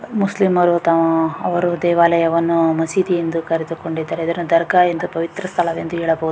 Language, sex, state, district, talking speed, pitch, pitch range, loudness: Kannada, female, Karnataka, Raichur, 140 wpm, 170 Hz, 165-175 Hz, -17 LUFS